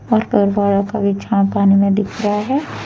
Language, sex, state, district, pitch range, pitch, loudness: Hindi, female, Jharkhand, Deoghar, 200-215 Hz, 205 Hz, -16 LUFS